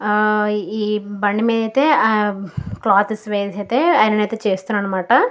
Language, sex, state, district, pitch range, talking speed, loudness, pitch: Telugu, female, Andhra Pradesh, Guntur, 205-220 Hz, 100 wpm, -18 LUFS, 210 Hz